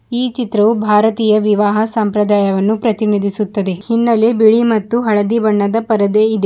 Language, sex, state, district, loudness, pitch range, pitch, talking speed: Kannada, female, Karnataka, Bidar, -14 LUFS, 210-225 Hz, 215 Hz, 120 wpm